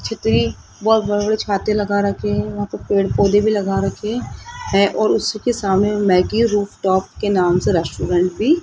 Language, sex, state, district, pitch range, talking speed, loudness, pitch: Hindi, female, Rajasthan, Jaipur, 180-215 Hz, 195 wpm, -18 LUFS, 200 Hz